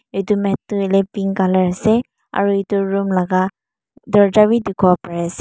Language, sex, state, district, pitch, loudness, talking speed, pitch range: Nagamese, female, Mizoram, Aizawl, 195 Hz, -17 LUFS, 200 wpm, 185-205 Hz